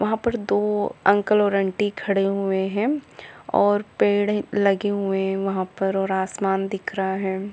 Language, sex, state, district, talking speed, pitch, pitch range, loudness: Hindi, female, Jharkhand, Jamtara, 165 wpm, 200 Hz, 195-205 Hz, -22 LUFS